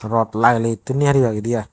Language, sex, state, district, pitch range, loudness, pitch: Chakma, male, Tripura, Dhalai, 115-130 Hz, -18 LUFS, 115 Hz